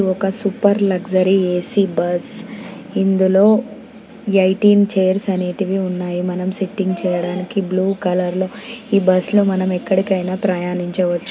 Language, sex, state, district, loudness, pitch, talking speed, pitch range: Telugu, female, Telangana, Nalgonda, -17 LUFS, 190 Hz, 120 wpm, 180-200 Hz